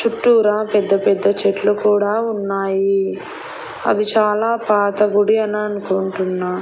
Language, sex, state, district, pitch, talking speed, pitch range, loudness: Telugu, female, Andhra Pradesh, Annamaya, 210 Hz, 110 wpm, 195-215 Hz, -17 LUFS